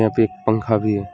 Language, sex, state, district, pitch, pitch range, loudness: Hindi, male, West Bengal, Alipurduar, 110 Hz, 105-115 Hz, -20 LUFS